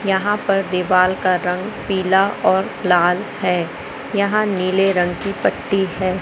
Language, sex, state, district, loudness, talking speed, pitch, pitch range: Hindi, male, Madhya Pradesh, Katni, -18 LUFS, 145 wpm, 190 Hz, 185-195 Hz